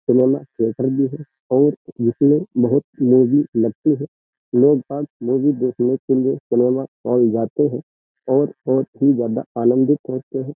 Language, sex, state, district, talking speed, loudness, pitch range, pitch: Hindi, male, Uttar Pradesh, Jyotiba Phule Nagar, 145 wpm, -18 LUFS, 125-140 Hz, 130 Hz